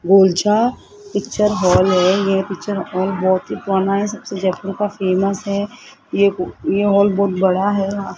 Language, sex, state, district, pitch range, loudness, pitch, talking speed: Hindi, male, Rajasthan, Jaipur, 190-205 Hz, -17 LUFS, 195 Hz, 155 wpm